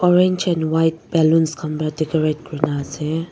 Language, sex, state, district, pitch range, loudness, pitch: Nagamese, female, Nagaland, Dimapur, 155-165 Hz, -19 LUFS, 160 Hz